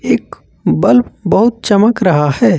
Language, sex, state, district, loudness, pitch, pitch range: Hindi, male, Jharkhand, Ranchi, -12 LUFS, 210 Hz, 185-235 Hz